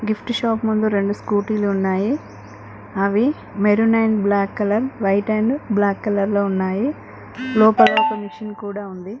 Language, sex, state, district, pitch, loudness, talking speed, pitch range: Telugu, female, Telangana, Mahabubabad, 210 Hz, -19 LUFS, 150 wpm, 200-220 Hz